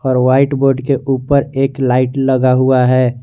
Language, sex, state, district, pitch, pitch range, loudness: Hindi, male, Jharkhand, Garhwa, 130 Hz, 130-135 Hz, -13 LUFS